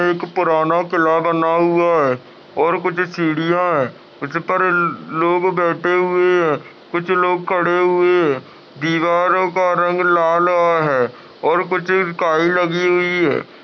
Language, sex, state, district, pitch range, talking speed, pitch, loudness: Hindi, male, Uttar Pradesh, Ghazipur, 165-180 Hz, 145 wpm, 175 Hz, -17 LUFS